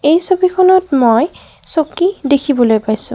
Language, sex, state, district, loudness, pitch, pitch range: Assamese, female, Assam, Kamrup Metropolitan, -13 LUFS, 310 Hz, 255-365 Hz